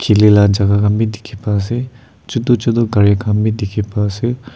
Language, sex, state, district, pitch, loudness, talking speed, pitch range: Nagamese, male, Nagaland, Kohima, 105 Hz, -15 LUFS, 210 wpm, 105-115 Hz